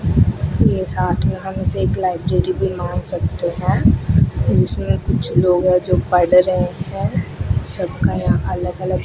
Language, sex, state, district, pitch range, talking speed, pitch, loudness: Hindi, female, Rajasthan, Bikaner, 135-180 Hz, 150 wpm, 180 Hz, -18 LUFS